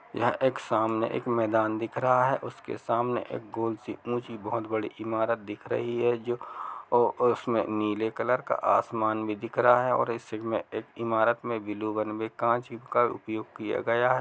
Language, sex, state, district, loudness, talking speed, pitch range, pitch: Hindi, male, Bihar, East Champaran, -28 LUFS, 175 wpm, 110-120 Hz, 115 Hz